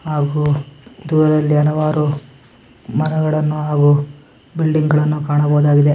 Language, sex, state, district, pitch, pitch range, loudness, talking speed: Kannada, male, Karnataka, Mysore, 150 Hz, 145-155 Hz, -16 LUFS, 70 wpm